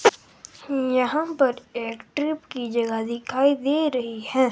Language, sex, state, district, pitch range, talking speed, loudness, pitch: Hindi, male, Himachal Pradesh, Shimla, 235-290 Hz, 130 wpm, -24 LUFS, 260 Hz